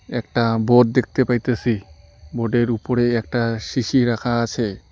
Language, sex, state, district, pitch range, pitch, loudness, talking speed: Bengali, male, West Bengal, Alipurduar, 115-120 Hz, 120 Hz, -20 LUFS, 120 wpm